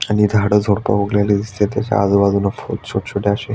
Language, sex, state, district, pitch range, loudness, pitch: Marathi, male, Maharashtra, Aurangabad, 100-105 Hz, -17 LUFS, 105 Hz